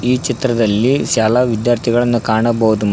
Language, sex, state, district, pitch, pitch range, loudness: Kannada, male, Karnataka, Koppal, 120 Hz, 110-125 Hz, -15 LUFS